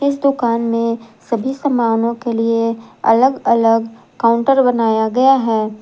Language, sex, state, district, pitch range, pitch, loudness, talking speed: Hindi, female, Jharkhand, Garhwa, 230-260 Hz, 230 Hz, -16 LUFS, 135 wpm